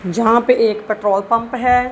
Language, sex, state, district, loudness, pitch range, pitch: Hindi, female, Punjab, Kapurthala, -16 LUFS, 215-250 Hz, 230 Hz